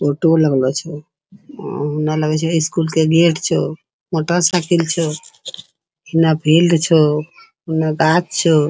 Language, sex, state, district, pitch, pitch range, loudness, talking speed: Angika, female, Bihar, Bhagalpur, 160 Hz, 155-170 Hz, -16 LUFS, 140 wpm